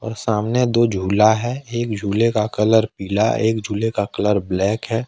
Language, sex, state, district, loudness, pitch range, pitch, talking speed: Hindi, male, Jharkhand, Ranchi, -19 LUFS, 105-115 Hz, 110 Hz, 190 wpm